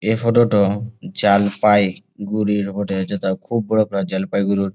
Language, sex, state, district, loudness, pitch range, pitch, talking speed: Bengali, male, West Bengal, Jalpaiguri, -18 LUFS, 100-110 Hz, 100 Hz, 115 wpm